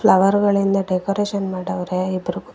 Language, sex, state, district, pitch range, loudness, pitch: Kannada, female, Karnataka, Bangalore, 185-200 Hz, -20 LUFS, 195 Hz